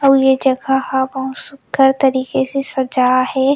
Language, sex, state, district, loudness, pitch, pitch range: Chhattisgarhi, female, Chhattisgarh, Rajnandgaon, -16 LUFS, 265 Hz, 265-270 Hz